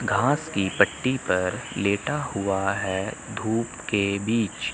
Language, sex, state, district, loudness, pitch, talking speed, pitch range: Hindi, male, Chandigarh, Chandigarh, -25 LUFS, 100 Hz, 125 wpm, 100-115 Hz